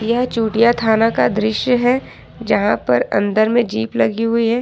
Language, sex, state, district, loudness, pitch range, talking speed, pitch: Hindi, female, Jharkhand, Ranchi, -16 LUFS, 205-235 Hz, 180 wpm, 220 Hz